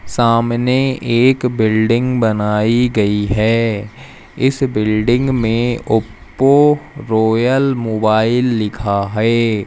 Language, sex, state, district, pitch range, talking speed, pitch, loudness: Hindi, male, Madhya Pradesh, Umaria, 110-125 Hz, 85 wpm, 115 Hz, -15 LUFS